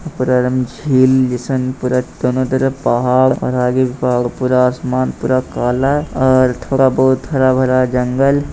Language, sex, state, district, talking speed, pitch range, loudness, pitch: Hindi, male, Bihar, Lakhisarai, 155 wpm, 125-130 Hz, -15 LUFS, 130 Hz